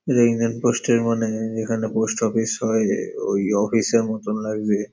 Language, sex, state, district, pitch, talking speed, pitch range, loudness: Bengali, male, West Bengal, Paschim Medinipur, 110 Hz, 160 wpm, 110-115 Hz, -21 LUFS